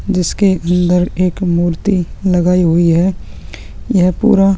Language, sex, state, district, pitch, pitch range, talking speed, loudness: Hindi, male, Uttarakhand, Tehri Garhwal, 180 Hz, 170-190 Hz, 130 wpm, -13 LUFS